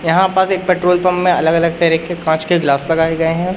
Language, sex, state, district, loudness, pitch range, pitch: Hindi, male, Madhya Pradesh, Umaria, -14 LUFS, 165-180 Hz, 170 Hz